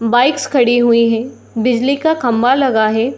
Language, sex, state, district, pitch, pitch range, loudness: Hindi, female, Uttar Pradesh, Muzaffarnagar, 240 Hz, 230-265 Hz, -14 LUFS